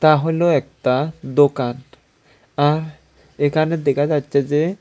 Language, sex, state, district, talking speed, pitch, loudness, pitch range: Bengali, male, Tripura, West Tripura, 110 wpm, 145 Hz, -19 LUFS, 140-155 Hz